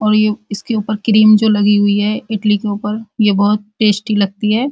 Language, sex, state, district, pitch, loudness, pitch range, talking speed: Hindi, female, Uttar Pradesh, Muzaffarnagar, 215 Hz, -14 LUFS, 205-215 Hz, 215 wpm